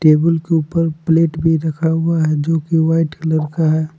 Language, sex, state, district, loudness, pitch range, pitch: Hindi, male, Jharkhand, Palamu, -16 LUFS, 155-165 Hz, 160 Hz